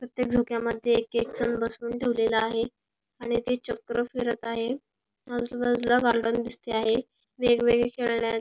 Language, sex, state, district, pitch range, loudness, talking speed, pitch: Marathi, female, Maharashtra, Pune, 230-245 Hz, -27 LUFS, 150 wpm, 235 Hz